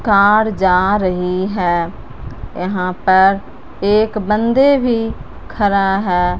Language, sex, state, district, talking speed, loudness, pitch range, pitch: Hindi, female, Punjab, Fazilka, 105 wpm, -15 LUFS, 180-215 Hz, 195 Hz